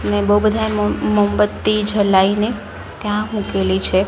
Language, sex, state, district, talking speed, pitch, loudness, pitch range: Gujarati, female, Gujarat, Gandhinagar, 120 wpm, 205 Hz, -17 LUFS, 190-210 Hz